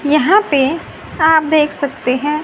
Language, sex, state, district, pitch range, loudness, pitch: Hindi, female, Haryana, Rohtak, 285-315 Hz, -14 LUFS, 300 Hz